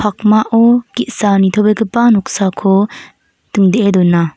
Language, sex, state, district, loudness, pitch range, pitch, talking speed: Garo, female, Meghalaya, North Garo Hills, -12 LUFS, 195-230 Hz, 210 Hz, 80 wpm